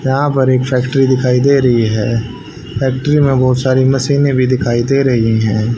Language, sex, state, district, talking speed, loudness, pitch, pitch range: Hindi, male, Haryana, Jhajjar, 185 wpm, -13 LUFS, 130 Hz, 120-135 Hz